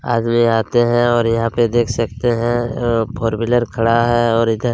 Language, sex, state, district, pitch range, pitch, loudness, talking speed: Hindi, male, Chhattisgarh, Kabirdham, 115-120 Hz, 115 Hz, -16 LUFS, 215 wpm